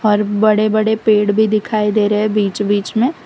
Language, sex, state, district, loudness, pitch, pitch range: Hindi, female, Gujarat, Valsad, -15 LUFS, 215 Hz, 210-215 Hz